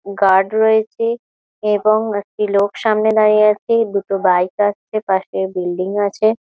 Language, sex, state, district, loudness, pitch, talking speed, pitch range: Bengali, female, West Bengal, Malda, -16 LUFS, 205 Hz, 140 wpm, 195-220 Hz